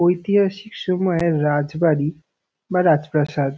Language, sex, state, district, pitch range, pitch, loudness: Bengali, male, West Bengal, North 24 Parganas, 150-180 Hz, 165 Hz, -20 LUFS